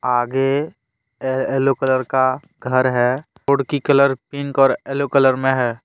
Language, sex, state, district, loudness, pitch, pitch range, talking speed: Hindi, male, Jharkhand, Deoghar, -18 LUFS, 135 Hz, 125-140 Hz, 155 wpm